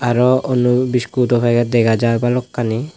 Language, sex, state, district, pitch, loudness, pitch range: Chakma, male, Tripura, West Tripura, 120 Hz, -16 LUFS, 120-125 Hz